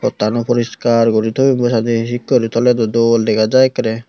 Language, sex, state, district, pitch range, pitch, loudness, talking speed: Chakma, male, Tripura, Unakoti, 115-120 Hz, 115 Hz, -14 LUFS, 175 wpm